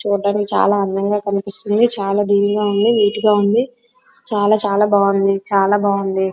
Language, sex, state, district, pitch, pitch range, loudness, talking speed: Telugu, female, Andhra Pradesh, Srikakulam, 205 Hz, 200-210 Hz, -16 LUFS, 85 wpm